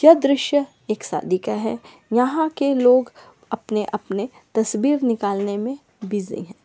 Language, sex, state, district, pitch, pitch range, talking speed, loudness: Magahi, female, Bihar, Samastipur, 230 Hz, 210-275 Hz, 135 wpm, -21 LUFS